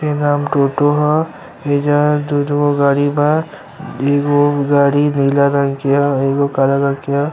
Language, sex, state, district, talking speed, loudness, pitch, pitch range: Bhojpuri, male, Uttar Pradesh, Ghazipur, 170 wpm, -15 LUFS, 145 Hz, 140-145 Hz